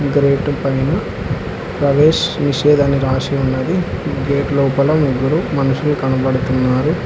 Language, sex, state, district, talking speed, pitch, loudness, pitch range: Telugu, male, Telangana, Hyderabad, 100 wpm, 140 Hz, -16 LUFS, 135-145 Hz